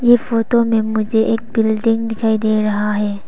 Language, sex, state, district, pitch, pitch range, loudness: Hindi, female, Arunachal Pradesh, Papum Pare, 220 Hz, 215-225 Hz, -16 LUFS